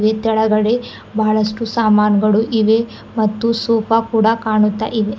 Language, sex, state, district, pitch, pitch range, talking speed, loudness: Kannada, female, Karnataka, Bidar, 220 Hz, 215-225 Hz, 105 wpm, -16 LUFS